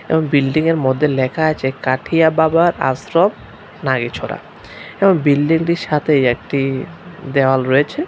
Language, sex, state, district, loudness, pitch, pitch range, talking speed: Bengali, male, Tripura, West Tripura, -16 LUFS, 150 Hz, 135-165 Hz, 110 wpm